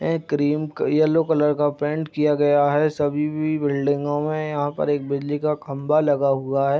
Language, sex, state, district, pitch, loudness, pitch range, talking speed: Hindi, male, Bihar, Madhepura, 145 Hz, -21 LUFS, 145-155 Hz, 195 wpm